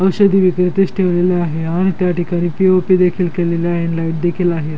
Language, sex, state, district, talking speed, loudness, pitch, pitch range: Marathi, male, Maharashtra, Dhule, 190 wpm, -15 LUFS, 180 Hz, 170-185 Hz